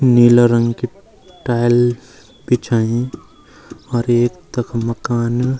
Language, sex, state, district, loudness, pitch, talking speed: Garhwali, male, Uttarakhand, Uttarkashi, -16 LUFS, 120 Hz, 95 wpm